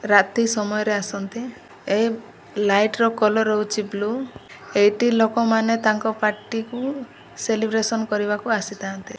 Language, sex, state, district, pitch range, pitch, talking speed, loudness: Odia, female, Odisha, Malkangiri, 210-230 Hz, 220 Hz, 125 wpm, -21 LUFS